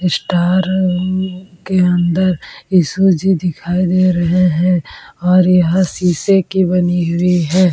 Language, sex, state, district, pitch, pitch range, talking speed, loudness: Hindi, female, Bihar, Vaishali, 180 Hz, 175-185 Hz, 130 wpm, -14 LUFS